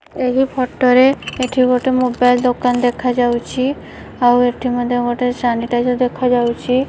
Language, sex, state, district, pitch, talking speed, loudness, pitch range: Odia, female, Odisha, Malkangiri, 250 Hz, 120 wpm, -16 LUFS, 245-255 Hz